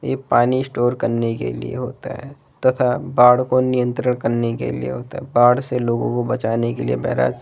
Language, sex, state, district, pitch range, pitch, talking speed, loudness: Hindi, male, Delhi, New Delhi, 115-125 Hz, 120 Hz, 210 wpm, -19 LUFS